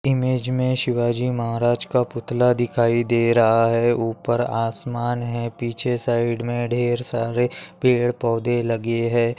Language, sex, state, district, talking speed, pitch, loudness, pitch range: Hindi, male, Maharashtra, Pune, 140 wpm, 120 Hz, -21 LUFS, 115-120 Hz